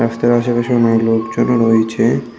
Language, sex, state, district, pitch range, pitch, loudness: Bengali, male, West Bengal, Cooch Behar, 115-120 Hz, 115 Hz, -14 LUFS